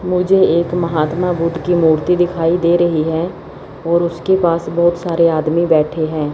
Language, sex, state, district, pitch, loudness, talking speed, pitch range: Hindi, female, Chandigarh, Chandigarh, 170 Hz, -15 LUFS, 170 wpm, 160-175 Hz